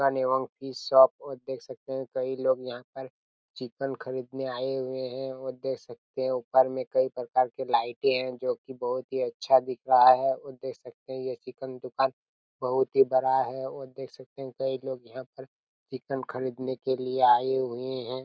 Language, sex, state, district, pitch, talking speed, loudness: Hindi, male, Chhattisgarh, Raigarh, 130 Hz, 205 wpm, -28 LUFS